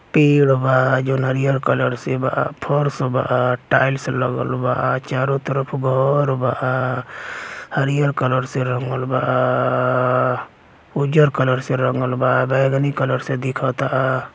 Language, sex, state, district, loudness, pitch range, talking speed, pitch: Bhojpuri, male, Uttar Pradesh, Gorakhpur, -19 LUFS, 130-135 Hz, 130 wpm, 130 Hz